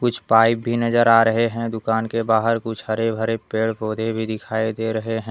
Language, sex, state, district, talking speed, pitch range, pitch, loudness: Hindi, male, Jharkhand, Deoghar, 225 wpm, 110-115 Hz, 115 Hz, -20 LUFS